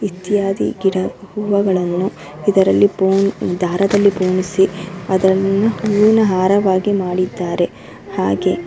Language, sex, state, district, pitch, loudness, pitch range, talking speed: Kannada, female, Karnataka, Dharwad, 190 Hz, -16 LUFS, 185-200 Hz, 90 wpm